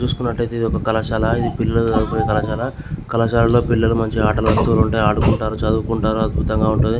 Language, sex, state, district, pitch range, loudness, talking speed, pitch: Telugu, male, Telangana, Karimnagar, 110-115 Hz, -18 LUFS, 155 wpm, 110 Hz